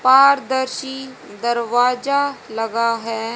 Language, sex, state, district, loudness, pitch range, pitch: Hindi, female, Haryana, Charkhi Dadri, -19 LUFS, 230-265 Hz, 250 Hz